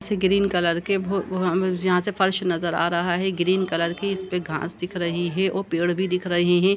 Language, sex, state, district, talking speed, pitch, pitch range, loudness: Hindi, male, Uttar Pradesh, Jalaun, 240 wpm, 180 Hz, 175-190 Hz, -23 LUFS